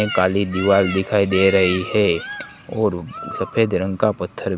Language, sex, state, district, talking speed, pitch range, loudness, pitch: Hindi, male, Gujarat, Gandhinagar, 155 wpm, 95-100 Hz, -19 LUFS, 95 Hz